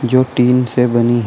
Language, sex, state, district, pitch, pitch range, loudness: Hindi, male, Uttar Pradesh, Shamli, 125 Hz, 120-125 Hz, -14 LUFS